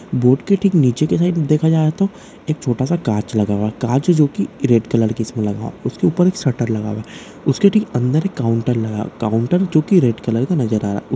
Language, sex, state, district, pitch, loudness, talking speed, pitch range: Hindi, male, Chhattisgarh, Korba, 125 Hz, -17 LUFS, 265 wpm, 110-160 Hz